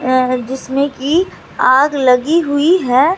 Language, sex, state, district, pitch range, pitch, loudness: Hindi, female, Bihar, Katihar, 255-300 Hz, 275 Hz, -14 LUFS